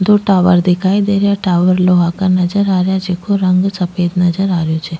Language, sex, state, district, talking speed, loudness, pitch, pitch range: Rajasthani, female, Rajasthan, Nagaur, 190 wpm, -13 LUFS, 185 Hz, 180-195 Hz